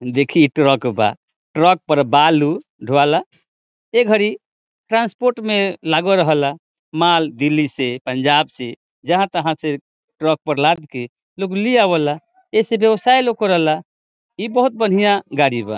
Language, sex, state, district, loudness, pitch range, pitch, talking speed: Bhojpuri, male, Bihar, Saran, -17 LUFS, 145-205 Hz, 160 Hz, 145 wpm